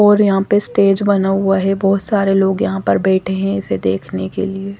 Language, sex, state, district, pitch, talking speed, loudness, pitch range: Hindi, female, Chandigarh, Chandigarh, 195 Hz, 225 wpm, -16 LUFS, 170-195 Hz